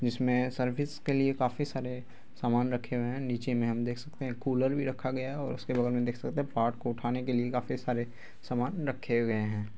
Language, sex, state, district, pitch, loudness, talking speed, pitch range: Hindi, male, Bihar, Araria, 125 Hz, -32 LUFS, 240 wpm, 120-130 Hz